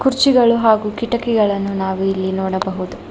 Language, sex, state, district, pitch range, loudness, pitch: Kannada, female, Karnataka, Bangalore, 190-235 Hz, -17 LUFS, 210 Hz